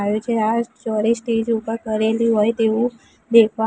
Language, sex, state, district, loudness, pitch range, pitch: Gujarati, female, Gujarat, Gandhinagar, -19 LUFS, 220-230 Hz, 225 Hz